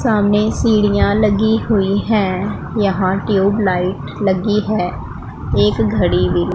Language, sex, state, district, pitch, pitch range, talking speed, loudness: Hindi, female, Punjab, Pathankot, 200 Hz, 185-210 Hz, 110 wpm, -16 LUFS